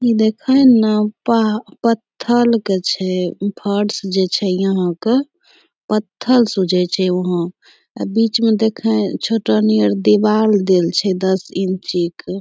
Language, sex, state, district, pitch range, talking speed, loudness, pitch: Angika, female, Bihar, Bhagalpur, 185-225 Hz, 135 wpm, -16 LUFS, 200 Hz